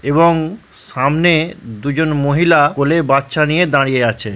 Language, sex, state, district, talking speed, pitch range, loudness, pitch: Bengali, male, West Bengal, Purulia, 125 wpm, 140-165 Hz, -14 LUFS, 145 Hz